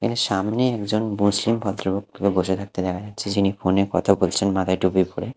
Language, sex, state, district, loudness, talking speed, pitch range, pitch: Bengali, male, Odisha, Khordha, -22 LUFS, 190 wpm, 95-105 Hz, 100 Hz